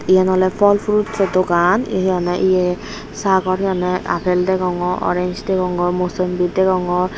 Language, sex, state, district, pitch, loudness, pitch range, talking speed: Chakma, female, Tripura, Unakoti, 185 Hz, -17 LUFS, 180-190 Hz, 150 wpm